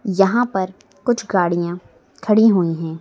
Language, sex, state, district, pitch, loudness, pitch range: Hindi, female, Madhya Pradesh, Bhopal, 190 Hz, -18 LUFS, 175-215 Hz